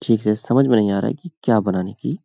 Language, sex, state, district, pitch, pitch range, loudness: Hindi, male, Uttar Pradesh, Hamirpur, 115 Hz, 100-135 Hz, -19 LUFS